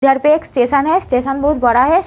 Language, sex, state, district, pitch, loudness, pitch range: Hindi, female, Uttar Pradesh, Etah, 275 Hz, -14 LUFS, 255-305 Hz